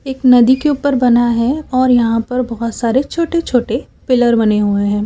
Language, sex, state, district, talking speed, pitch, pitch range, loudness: Hindi, female, Chhattisgarh, Raipur, 200 wpm, 245 Hz, 230-265 Hz, -14 LUFS